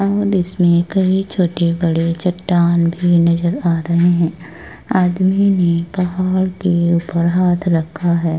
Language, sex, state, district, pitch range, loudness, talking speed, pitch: Hindi, female, Uttar Pradesh, Etah, 170-185 Hz, -16 LUFS, 130 wpm, 175 Hz